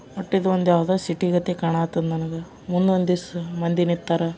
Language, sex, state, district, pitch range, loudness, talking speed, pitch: Kannada, male, Karnataka, Bijapur, 170-180 Hz, -22 LUFS, 190 wpm, 175 Hz